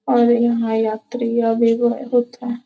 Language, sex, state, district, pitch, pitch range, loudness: Hindi, female, Bihar, Gopalganj, 235 Hz, 230-240 Hz, -18 LUFS